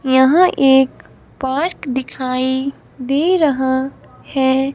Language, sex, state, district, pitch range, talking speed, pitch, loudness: Hindi, female, Himachal Pradesh, Shimla, 260-280 Hz, 90 wpm, 265 Hz, -16 LUFS